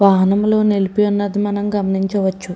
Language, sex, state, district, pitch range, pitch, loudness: Telugu, female, Andhra Pradesh, Srikakulam, 195-205 Hz, 200 Hz, -17 LUFS